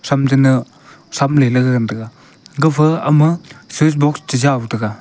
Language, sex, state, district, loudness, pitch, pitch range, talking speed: Wancho, male, Arunachal Pradesh, Longding, -15 LUFS, 140 Hz, 125-155 Hz, 165 wpm